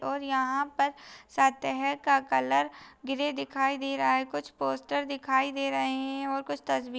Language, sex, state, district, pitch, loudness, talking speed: Hindi, female, Uttarakhand, Tehri Garhwal, 270 Hz, -29 LUFS, 170 wpm